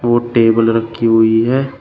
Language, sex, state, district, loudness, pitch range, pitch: Hindi, male, Uttar Pradesh, Shamli, -13 LUFS, 115-120 Hz, 115 Hz